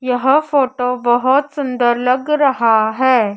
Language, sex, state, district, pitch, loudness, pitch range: Hindi, female, Madhya Pradesh, Dhar, 255 Hz, -15 LUFS, 240-275 Hz